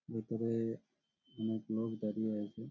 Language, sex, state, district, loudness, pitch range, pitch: Bengali, male, West Bengal, Malda, -39 LUFS, 110-115 Hz, 110 Hz